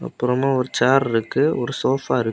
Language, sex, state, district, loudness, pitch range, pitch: Tamil, male, Tamil Nadu, Kanyakumari, -20 LUFS, 125-135 Hz, 125 Hz